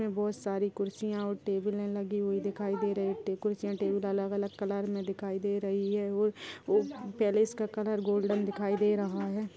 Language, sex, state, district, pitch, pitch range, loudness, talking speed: Hindi, female, Rajasthan, Nagaur, 205 Hz, 200-210 Hz, -32 LUFS, 190 wpm